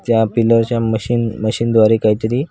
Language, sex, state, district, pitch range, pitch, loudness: Marathi, male, Maharashtra, Washim, 110-115 Hz, 115 Hz, -15 LUFS